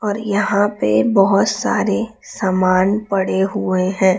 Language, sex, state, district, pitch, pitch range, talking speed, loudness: Hindi, female, Chhattisgarh, Raipur, 195 Hz, 185-205 Hz, 130 wpm, -17 LUFS